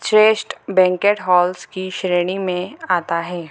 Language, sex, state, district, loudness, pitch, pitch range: Hindi, female, Bihar, Gopalganj, -18 LUFS, 185 Hz, 180-190 Hz